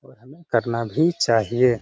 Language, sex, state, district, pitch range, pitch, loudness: Hindi, male, Bihar, Gaya, 115-140 Hz, 120 Hz, -21 LUFS